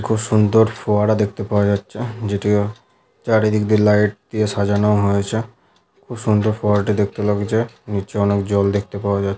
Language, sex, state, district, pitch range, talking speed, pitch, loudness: Bengali, male, West Bengal, Malda, 100-110 Hz, 160 wpm, 105 Hz, -18 LUFS